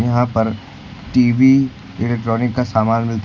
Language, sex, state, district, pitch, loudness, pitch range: Hindi, male, Uttar Pradesh, Lucknow, 120 Hz, -16 LUFS, 110-125 Hz